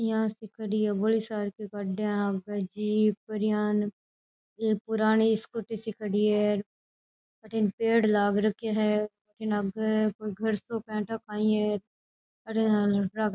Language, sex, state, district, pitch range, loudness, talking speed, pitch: Rajasthani, female, Rajasthan, Churu, 210-220 Hz, -28 LUFS, 145 wpm, 215 Hz